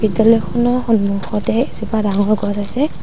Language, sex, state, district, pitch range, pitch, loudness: Assamese, female, Assam, Sonitpur, 205-230 Hz, 215 Hz, -17 LUFS